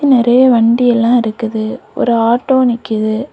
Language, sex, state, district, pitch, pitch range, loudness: Tamil, female, Tamil Nadu, Kanyakumari, 235 Hz, 225-250 Hz, -12 LUFS